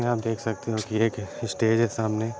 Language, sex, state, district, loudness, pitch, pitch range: Hindi, male, Uttar Pradesh, Gorakhpur, -26 LUFS, 115 Hz, 110-115 Hz